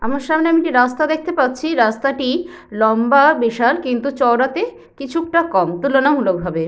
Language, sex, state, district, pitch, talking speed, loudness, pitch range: Bengali, female, West Bengal, Jhargram, 275 Hz, 145 wpm, -16 LUFS, 235-315 Hz